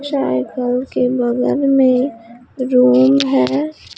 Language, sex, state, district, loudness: Hindi, female, Bihar, Katihar, -15 LUFS